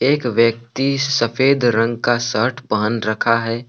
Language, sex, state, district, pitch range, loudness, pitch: Hindi, male, Jharkhand, Palamu, 115-130 Hz, -17 LUFS, 120 Hz